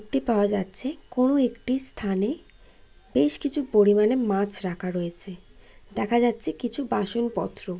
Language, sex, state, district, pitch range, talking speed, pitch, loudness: Bengali, female, West Bengal, Jalpaiguri, 195-255 Hz, 125 wpm, 215 Hz, -25 LUFS